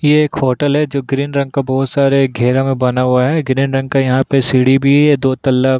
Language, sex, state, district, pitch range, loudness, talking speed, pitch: Hindi, male, Uttarakhand, Tehri Garhwal, 130-140 Hz, -14 LUFS, 270 wpm, 135 Hz